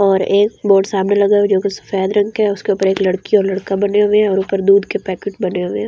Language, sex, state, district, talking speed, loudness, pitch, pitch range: Hindi, female, Delhi, New Delhi, 295 wpm, -15 LUFS, 200 Hz, 195-205 Hz